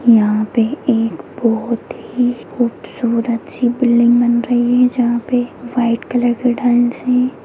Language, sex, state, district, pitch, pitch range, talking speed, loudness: Hindi, female, Bihar, Begusarai, 240 Hz, 235-245 Hz, 145 wpm, -16 LUFS